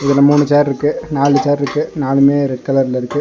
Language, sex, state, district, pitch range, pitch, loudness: Tamil, male, Tamil Nadu, Nilgiris, 140-145 Hz, 140 Hz, -14 LUFS